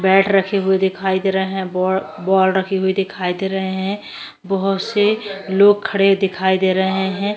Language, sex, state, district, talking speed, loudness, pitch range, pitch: Hindi, female, Goa, North and South Goa, 185 wpm, -17 LUFS, 190-195 Hz, 190 Hz